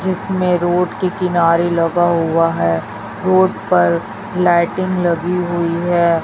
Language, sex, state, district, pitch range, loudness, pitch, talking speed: Hindi, female, Chhattisgarh, Raipur, 170-185 Hz, -16 LUFS, 175 Hz, 125 wpm